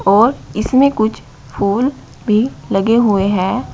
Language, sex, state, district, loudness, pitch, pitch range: Hindi, male, Uttar Pradesh, Shamli, -15 LUFS, 220 Hz, 200-250 Hz